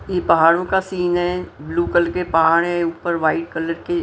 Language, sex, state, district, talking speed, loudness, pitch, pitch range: Hindi, female, Punjab, Pathankot, 210 wpm, -19 LUFS, 170 Hz, 165-180 Hz